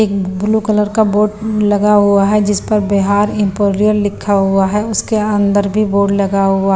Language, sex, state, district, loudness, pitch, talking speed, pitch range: Hindi, female, Bihar, Patna, -13 LUFS, 205 Hz, 185 wpm, 200-210 Hz